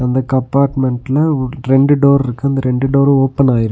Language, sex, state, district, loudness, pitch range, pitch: Tamil, male, Tamil Nadu, Nilgiris, -14 LUFS, 130-140 Hz, 135 Hz